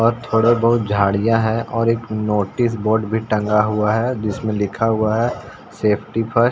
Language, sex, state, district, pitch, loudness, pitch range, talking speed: Hindi, male, Uttar Pradesh, Ghazipur, 110 Hz, -18 LUFS, 105-115 Hz, 185 wpm